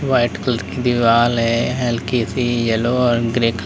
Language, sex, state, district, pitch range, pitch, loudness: Hindi, male, Uttar Pradesh, Lalitpur, 115-125 Hz, 120 Hz, -17 LUFS